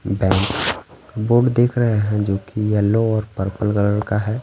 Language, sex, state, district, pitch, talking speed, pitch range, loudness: Hindi, male, Bihar, Patna, 105 Hz, 190 wpm, 100-110 Hz, -19 LUFS